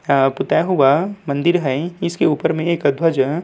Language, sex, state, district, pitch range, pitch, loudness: Hindi, male, Uttarakhand, Tehri Garhwal, 140-170 Hz, 160 Hz, -17 LUFS